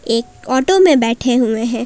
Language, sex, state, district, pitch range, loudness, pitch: Hindi, female, Jharkhand, Palamu, 230-260 Hz, -14 LUFS, 245 Hz